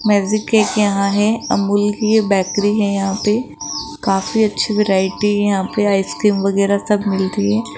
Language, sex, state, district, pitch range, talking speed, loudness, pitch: Hindi, female, Rajasthan, Jaipur, 195-210 Hz, 160 wpm, -16 LUFS, 205 Hz